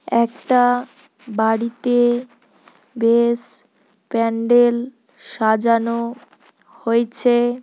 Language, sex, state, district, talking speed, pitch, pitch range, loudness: Bengali, female, West Bengal, Purulia, 45 wpm, 235 Hz, 230-245 Hz, -18 LUFS